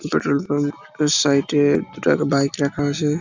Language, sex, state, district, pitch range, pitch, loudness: Bengali, male, West Bengal, Purulia, 140-150 Hz, 145 Hz, -20 LUFS